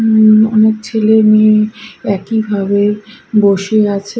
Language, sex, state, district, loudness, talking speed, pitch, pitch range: Bengali, female, Odisha, Khordha, -11 LUFS, 85 wpm, 215 Hz, 205-220 Hz